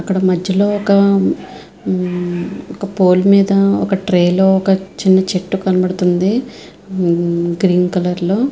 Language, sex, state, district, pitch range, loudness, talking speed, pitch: Telugu, female, Andhra Pradesh, Visakhapatnam, 180-195 Hz, -14 LUFS, 115 wpm, 190 Hz